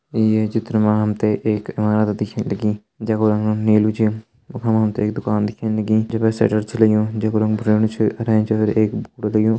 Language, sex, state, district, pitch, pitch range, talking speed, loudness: Hindi, male, Uttarakhand, Uttarkashi, 110 Hz, 105-110 Hz, 195 wpm, -19 LUFS